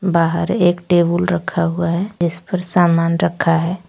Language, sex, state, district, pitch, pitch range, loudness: Hindi, female, Jharkhand, Deoghar, 175 Hz, 170-180 Hz, -17 LUFS